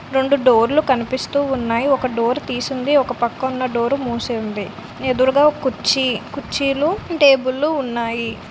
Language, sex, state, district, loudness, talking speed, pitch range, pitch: Telugu, female, Andhra Pradesh, Visakhapatnam, -18 LUFS, 175 wpm, 235-275 Hz, 260 Hz